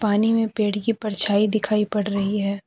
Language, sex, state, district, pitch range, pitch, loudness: Hindi, female, Jharkhand, Deoghar, 205-215 Hz, 210 Hz, -21 LUFS